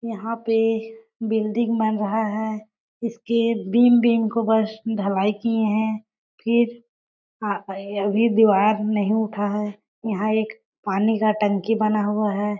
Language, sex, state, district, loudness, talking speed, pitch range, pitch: Hindi, female, Chhattisgarh, Balrampur, -22 LUFS, 130 wpm, 210-225 Hz, 220 Hz